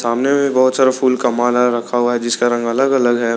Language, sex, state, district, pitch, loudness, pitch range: Hindi, male, Jharkhand, Garhwa, 120 Hz, -15 LUFS, 120-130 Hz